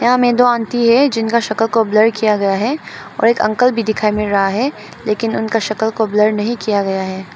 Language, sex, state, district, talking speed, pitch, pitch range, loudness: Hindi, female, Arunachal Pradesh, Papum Pare, 230 wpm, 220 Hz, 210-235 Hz, -15 LUFS